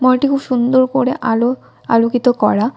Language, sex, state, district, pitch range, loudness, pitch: Bengali, female, West Bengal, Cooch Behar, 235-260 Hz, -15 LUFS, 255 Hz